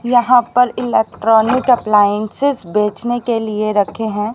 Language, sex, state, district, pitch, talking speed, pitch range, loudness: Hindi, female, Haryana, Rohtak, 220 Hz, 125 wpm, 210-245 Hz, -15 LUFS